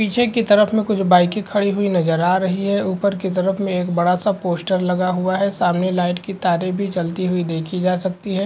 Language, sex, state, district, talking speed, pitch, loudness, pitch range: Hindi, male, Uttar Pradesh, Varanasi, 225 wpm, 185 Hz, -19 LUFS, 180-200 Hz